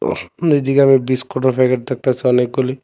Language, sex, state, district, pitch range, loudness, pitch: Bengali, male, Tripura, West Tripura, 130-135 Hz, -16 LUFS, 130 Hz